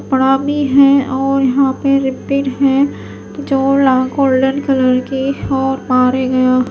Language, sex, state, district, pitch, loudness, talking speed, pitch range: Hindi, female, Maharashtra, Mumbai Suburban, 270 Hz, -14 LUFS, 105 wpm, 260-275 Hz